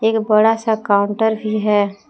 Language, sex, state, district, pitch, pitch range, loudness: Hindi, female, Jharkhand, Palamu, 215 Hz, 205-220 Hz, -16 LUFS